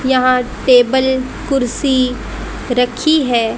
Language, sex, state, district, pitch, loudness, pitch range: Hindi, female, Haryana, Rohtak, 255 Hz, -14 LUFS, 245-265 Hz